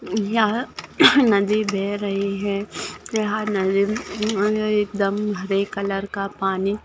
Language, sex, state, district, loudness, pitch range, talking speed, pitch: Hindi, female, Maharashtra, Solapur, -21 LUFS, 200-215 Hz, 105 wpm, 205 Hz